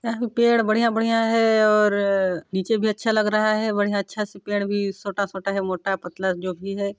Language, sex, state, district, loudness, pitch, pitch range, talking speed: Hindi, female, Chhattisgarh, Sarguja, -22 LUFS, 205 Hz, 195-220 Hz, 205 wpm